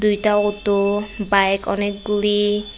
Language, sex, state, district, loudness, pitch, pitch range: Bengali, female, Tripura, West Tripura, -19 LUFS, 205 Hz, 200-210 Hz